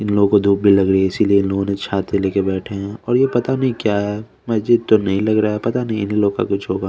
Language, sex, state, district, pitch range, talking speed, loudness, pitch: Hindi, male, Chandigarh, Chandigarh, 100-110 Hz, 280 wpm, -17 LUFS, 100 Hz